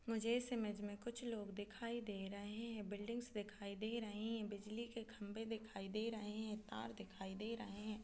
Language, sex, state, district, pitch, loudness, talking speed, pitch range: Hindi, female, Chhattisgarh, Kabirdham, 215 Hz, -47 LUFS, 200 wpm, 205-230 Hz